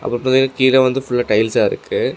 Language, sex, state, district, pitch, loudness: Tamil, male, Tamil Nadu, Namakkal, 130 Hz, -16 LUFS